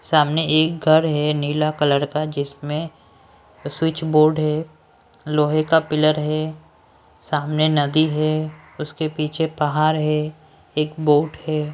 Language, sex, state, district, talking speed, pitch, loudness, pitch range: Hindi, female, Maharashtra, Washim, 130 wpm, 155 Hz, -20 LUFS, 150-155 Hz